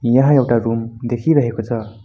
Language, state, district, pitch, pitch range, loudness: Nepali, West Bengal, Darjeeling, 120 Hz, 115-130 Hz, -17 LUFS